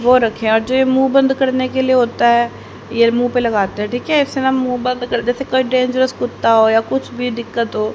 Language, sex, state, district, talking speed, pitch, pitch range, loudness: Hindi, female, Haryana, Charkhi Dadri, 255 wpm, 245 Hz, 235-260 Hz, -16 LUFS